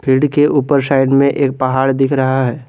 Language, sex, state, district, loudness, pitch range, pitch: Hindi, male, Jharkhand, Garhwa, -13 LUFS, 130-140 Hz, 135 Hz